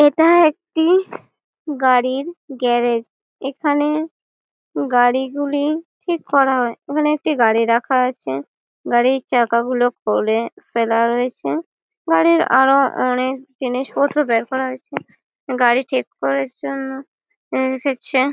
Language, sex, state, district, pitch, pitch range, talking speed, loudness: Bengali, female, West Bengal, Malda, 265 Hz, 245-300 Hz, 105 wpm, -18 LUFS